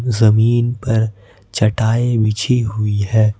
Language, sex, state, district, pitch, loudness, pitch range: Hindi, male, Jharkhand, Ranchi, 110 Hz, -16 LUFS, 105-120 Hz